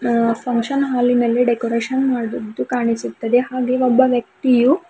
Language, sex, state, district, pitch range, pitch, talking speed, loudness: Kannada, female, Karnataka, Bidar, 235-255 Hz, 245 Hz, 110 wpm, -18 LUFS